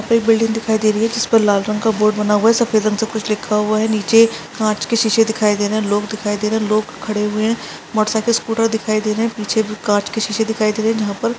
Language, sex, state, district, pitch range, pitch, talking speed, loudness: Hindi, female, Chhattisgarh, Sarguja, 210-225 Hz, 215 Hz, 300 wpm, -17 LUFS